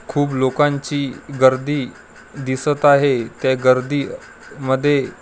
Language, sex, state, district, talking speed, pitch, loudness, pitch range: Marathi, male, Maharashtra, Gondia, 105 wpm, 140 Hz, -18 LUFS, 130-145 Hz